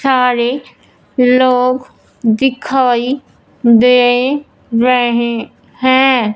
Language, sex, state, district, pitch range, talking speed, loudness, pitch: Hindi, female, Punjab, Fazilka, 240-260 Hz, 55 wpm, -13 LUFS, 250 Hz